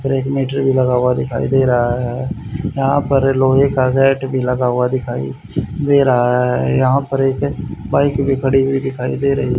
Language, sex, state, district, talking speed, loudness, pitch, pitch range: Hindi, male, Haryana, Charkhi Dadri, 200 wpm, -16 LUFS, 135 Hz, 125-135 Hz